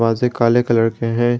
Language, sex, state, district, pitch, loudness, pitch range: Hindi, male, Jharkhand, Garhwa, 115 Hz, -17 LUFS, 115-120 Hz